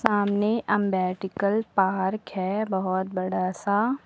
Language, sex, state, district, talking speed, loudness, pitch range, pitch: Hindi, female, Uttar Pradesh, Lucknow, 105 wpm, -25 LUFS, 190-210 Hz, 200 Hz